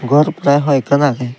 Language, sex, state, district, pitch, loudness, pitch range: Chakma, male, Tripura, Dhalai, 140 Hz, -14 LUFS, 130-145 Hz